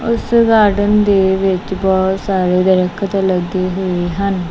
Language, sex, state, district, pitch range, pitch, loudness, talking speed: Punjabi, female, Punjab, Kapurthala, 185-200 Hz, 190 Hz, -14 LUFS, 135 wpm